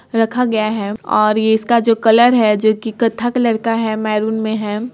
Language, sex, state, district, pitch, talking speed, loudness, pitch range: Hindi, female, Bihar, Samastipur, 220 Hz, 220 wpm, -15 LUFS, 215-230 Hz